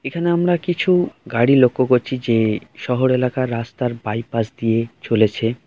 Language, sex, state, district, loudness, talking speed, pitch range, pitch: Bengali, male, West Bengal, Kolkata, -19 LUFS, 125 wpm, 115-130 Hz, 125 Hz